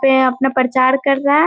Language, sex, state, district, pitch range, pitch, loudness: Hindi, female, Bihar, Muzaffarpur, 260-275 Hz, 270 Hz, -15 LUFS